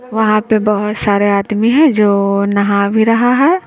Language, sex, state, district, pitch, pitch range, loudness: Hindi, male, Bihar, West Champaran, 210 Hz, 200-225 Hz, -12 LUFS